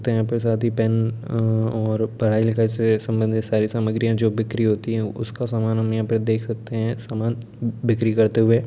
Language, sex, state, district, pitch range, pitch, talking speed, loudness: Hindi, male, Bihar, Muzaffarpur, 110-115 Hz, 115 Hz, 200 wpm, -22 LUFS